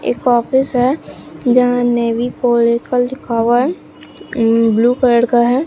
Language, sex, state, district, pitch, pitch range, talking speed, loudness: Hindi, female, Bihar, Katihar, 245 Hz, 235-255 Hz, 115 wpm, -14 LUFS